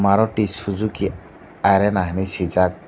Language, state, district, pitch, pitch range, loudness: Kokborok, Tripura, Dhalai, 100 Hz, 95-105 Hz, -20 LUFS